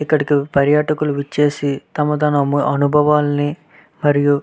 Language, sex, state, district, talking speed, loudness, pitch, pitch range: Telugu, male, Andhra Pradesh, Visakhapatnam, 110 wpm, -17 LUFS, 145 Hz, 145-150 Hz